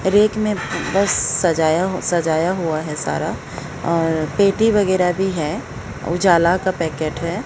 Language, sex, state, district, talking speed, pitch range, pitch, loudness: Hindi, female, Odisha, Sambalpur, 130 wpm, 155-190 Hz, 170 Hz, -19 LUFS